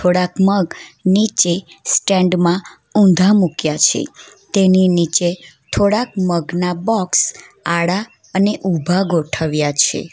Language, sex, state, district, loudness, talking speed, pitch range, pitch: Gujarati, female, Gujarat, Valsad, -16 LUFS, 110 wpm, 170-195 Hz, 180 Hz